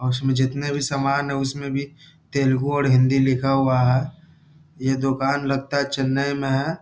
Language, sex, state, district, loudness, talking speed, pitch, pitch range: Hindi, male, Bihar, Muzaffarpur, -21 LUFS, 185 wpm, 140 Hz, 135-140 Hz